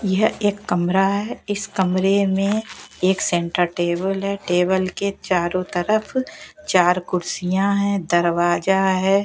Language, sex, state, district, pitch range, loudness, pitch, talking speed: Hindi, female, Bihar, West Champaran, 180-200 Hz, -20 LUFS, 190 Hz, 130 wpm